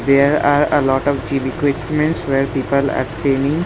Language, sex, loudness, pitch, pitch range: English, male, -17 LUFS, 140 Hz, 135-145 Hz